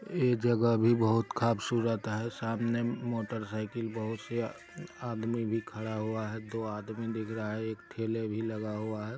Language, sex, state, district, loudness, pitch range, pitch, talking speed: Maithili, male, Bihar, Araria, -33 LUFS, 110-115 Hz, 115 Hz, 165 wpm